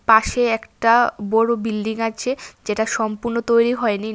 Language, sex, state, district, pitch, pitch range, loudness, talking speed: Bengali, female, Tripura, West Tripura, 225 Hz, 220-235 Hz, -19 LUFS, 130 wpm